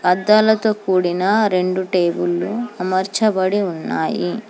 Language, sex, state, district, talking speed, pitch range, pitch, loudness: Telugu, female, Telangana, Hyderabad, 80 wpm, 180-210 Hz, 185 Hz, -18 LUFS